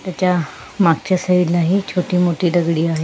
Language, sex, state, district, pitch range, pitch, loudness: Marathi, female, Maharashtra, Sindhudurg, 170-185 Hz, 175 Hz, -17 LUFS